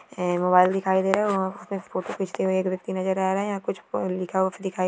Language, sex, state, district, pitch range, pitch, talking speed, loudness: Hindi, female, Uttar Pradesh, Deoria, 185-195 Hz, 190 Hz, 295 wpm, -25 LUFS